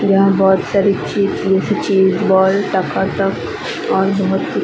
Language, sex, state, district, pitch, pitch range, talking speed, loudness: Hindi, female, Maharashtra, Mumbai Suburban, 195 Hz, 190-195 Hz, 90 wpm, -15 LUFS